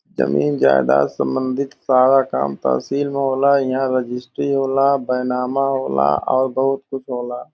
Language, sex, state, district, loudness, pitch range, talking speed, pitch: Bhojpuri, male, Uttar Pradesh, Varanasi, -18 LUFS, 85-135 Hz, 145 wpm, 130 Hz